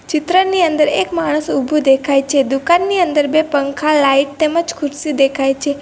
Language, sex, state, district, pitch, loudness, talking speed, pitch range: Gujarati, female, Gujarat, Valsad, 295 Hz, -15 LUFS, 165 wpm, 275-320 Hz